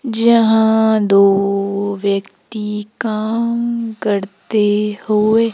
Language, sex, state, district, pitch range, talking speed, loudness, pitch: Hindi, female, Madhya Pradesh, Umaria, 200-225 Hz, 65 wpm, -16 LUFS, 215 Hz